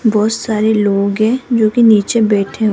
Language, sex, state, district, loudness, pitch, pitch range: Hindi, female, Rajasthan, Jaipur, -13 LUFS, 215 Hz, 210-225 Hz